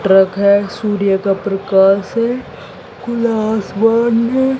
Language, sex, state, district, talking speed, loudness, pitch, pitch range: Hindi, female, Haryana, Jhajjar, 115 wpm, -15 LUFS, 210 Hz, 195-230 Hz